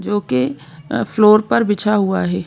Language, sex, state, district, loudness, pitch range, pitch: Hindi, female, Madhya Pradesh, Bhopal, -16 LUFS, 155-210 Hz, 195 Hz